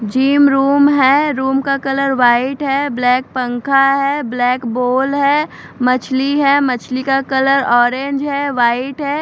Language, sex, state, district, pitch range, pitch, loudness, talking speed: Hindi, female, Maharashtra, Mumbai Suburban, 250-280 Hz, 270 Hz, -14 LUFS, 150 wpm